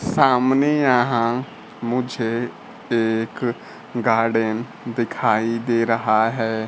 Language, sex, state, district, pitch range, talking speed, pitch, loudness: Hindi, male, Bihar, Kaimur, 115-125 Hz, 80 wpm, 115 Hz, -20 LUFS